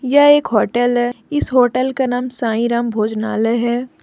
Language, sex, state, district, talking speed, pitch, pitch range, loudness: Hindi, female, Jharkhand, Deoghar, 180 wpm, 245 Hz, 230-255 Hz, -16 LUFS